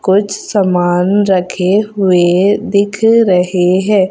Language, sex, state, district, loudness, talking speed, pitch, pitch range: Hindi, female, Madhya Pradesh, Umaria, -12 LUFS, 100 wpm, 195 Hz, 180-205 Hz